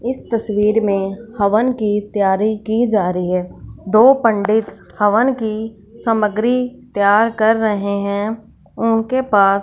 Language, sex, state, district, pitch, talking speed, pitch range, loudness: Hindi, female, Punjab, Fazilka, 215 Hz, 130 wpm, 205-230 Hz, -17 LUFS